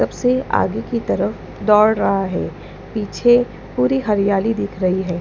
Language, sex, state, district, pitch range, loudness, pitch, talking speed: Hindi, female, Punjab, Pathankot, 185-225 Hz, -18 LUFS, 205 Hz, 150 wpm